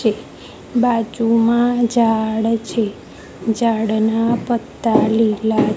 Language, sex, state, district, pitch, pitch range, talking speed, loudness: Gujarati, female, Gujarat, Gandhinagar, 230 Hz, 220-235 Hz, 75 wpm, -17 LUFS